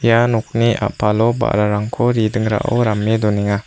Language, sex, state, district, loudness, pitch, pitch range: Garo, female, Meghalaya, South Garo Hills, -17 LUFS, 110 Hz, 105-115 Hz